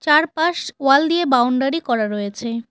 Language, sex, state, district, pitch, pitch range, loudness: Bengali, female, West Bengal, Cooch Behar, 270 Hz, 235-325 Hz, -18 LUFS